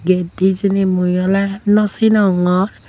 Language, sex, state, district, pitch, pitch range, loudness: Chakma, female, Tripura, Unakoti, 190 Hz, 185-200 Hz, -15 LUFS